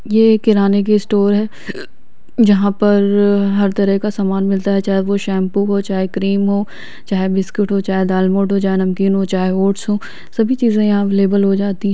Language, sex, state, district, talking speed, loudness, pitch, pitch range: Hindi, female, Bihar, East Champaran, 195 wpm, -15 LUFS, 200 Hz, 195-205 Hz